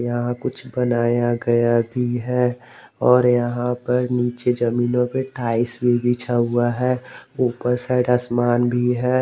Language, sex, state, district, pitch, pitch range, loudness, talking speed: Hindi, male, Jharkhand, Garhwa, 120 Hz, 120-125 Hz, -20 LUFS, 145 wpm